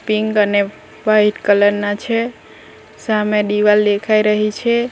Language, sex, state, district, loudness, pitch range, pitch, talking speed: Gujarati, female, Gujarat, Valsad, -16 LUFS, 205-215 Hz, 210 Hz, 135 wpm